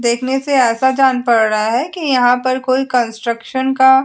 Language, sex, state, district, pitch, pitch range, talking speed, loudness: Hindi, female, Uttar Pradesh, Etah, 255 Hz, 235-265 Hz, 205 wpm, -15 LUFS